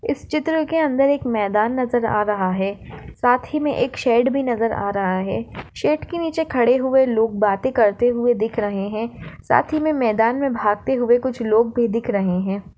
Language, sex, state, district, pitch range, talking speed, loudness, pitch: Hindi, female, Maharashtra, Dhule, 210-265 Hz, 200 wpm, -20 LUFS, 240 Hz